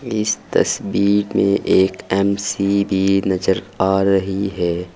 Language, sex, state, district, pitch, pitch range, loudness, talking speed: Hindi, male, Uttar Pradesh, Saharanpur, 95 Hz, 95-100 Hz, -18 LUFS, 110 wpm